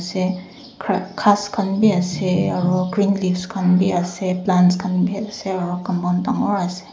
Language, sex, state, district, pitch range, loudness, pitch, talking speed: Nagamese, female, Nagaland, Dimapur, 180-200 Hz, -19 LUFS, 185 Hz, 175 wpm